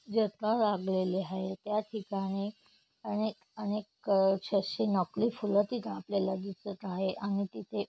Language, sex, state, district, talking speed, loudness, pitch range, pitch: Marathi, female, Maharashtra, Chandrapur, 135 wpm, -33 LUFS, 195-215 Hz, 200 Hz